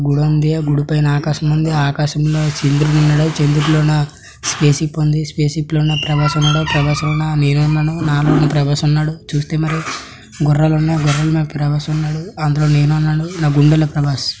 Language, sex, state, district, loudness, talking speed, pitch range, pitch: Telugu, male, Andhra Pradesh, Srikakulam, -15 LUFS, 145 wpm, 150-155 Hz, 150 Hz